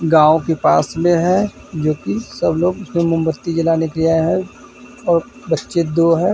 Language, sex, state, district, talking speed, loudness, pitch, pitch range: Hindi, male, Bihar, Vaishali, 160 wpm, -17 LUFS, 165 Hz, 160-175 Hz